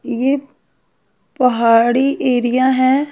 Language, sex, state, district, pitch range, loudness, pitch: Hindi, female, Haryana, Charkhi Dadri, 245-275 Hz, -15 LUFS, 260 Hz